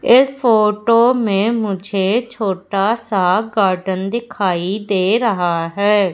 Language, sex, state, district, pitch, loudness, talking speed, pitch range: Hindi, female, Madhya Pradesh, Umaria, 205 Hz, -16 LUFS, 105 wpm, 190-230 Hz